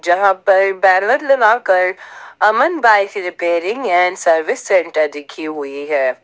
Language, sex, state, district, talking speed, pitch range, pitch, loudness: Hindi, female, Jharkhand, Ranchi, 125 wpm, 160-195 Hz, 180 Hz, -15 LUFS